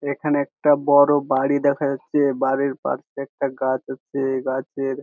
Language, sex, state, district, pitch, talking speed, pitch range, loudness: Bengali, male, West Bengal, Jhargram, 140 Hz, 145 wpm, 135-145 Hz, -21 LUFS